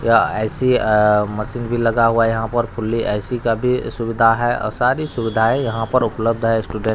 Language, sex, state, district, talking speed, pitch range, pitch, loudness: Bhojpuri, male, Bihar, Saran, 190 wpm, 110-120 Hz, 115 Hz, -18 LUFS